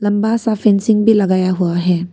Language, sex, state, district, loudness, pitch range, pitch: Hindi, female, Arunachal Pradesh, Papum Pare, -14 LUFS, 180-220 Hz, 205 Hz